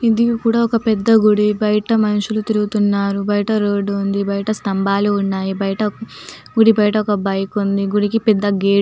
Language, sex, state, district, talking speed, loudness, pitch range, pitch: Telugu, female, Telangana, Nalgonda, 145 wpm, -17 LUFS, 200-215 Hz, 210 Hz